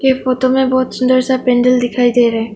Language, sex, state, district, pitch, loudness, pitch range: Hindi, female, Arunachal Pradesh, Longding, 255 Hz, -13 LUFS, 245-260 Hz